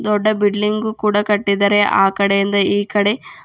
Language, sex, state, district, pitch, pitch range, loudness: Kannada, female, Karnataka, Bidar, 205 Hz, 200-210 Hz, -16 LUFS